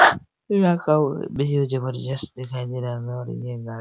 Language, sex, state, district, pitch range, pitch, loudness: Hindi, male, Bihar, Araria, 125-150 Hz, 130 Hz, -24 LUFS